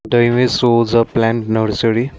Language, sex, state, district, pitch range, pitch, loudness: English, male, Assam, Kamrup Metropolitan, 115-120 Hz, 115 Hz, -15 LUFS